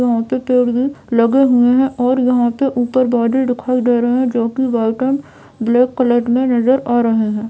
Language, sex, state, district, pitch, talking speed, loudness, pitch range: Hindi, female, Bihar, Jamui, 245 Hz, 215 wpm, -15 LUFS, 240-255 Hz